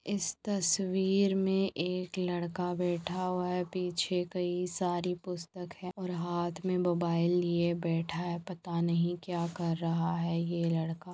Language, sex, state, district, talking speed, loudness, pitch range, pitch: Hindi, female, Jharkhand, Sahebganj, 150 wpm, -32 LUFS, 170-180 Hz, 175 Hz